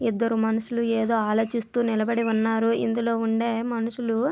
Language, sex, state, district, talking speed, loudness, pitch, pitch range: Telugu, female, Andhra Pradesh, Visakhapatnam, 140 wpm, -24 LUFS, 230 Hz, 225-235 Hz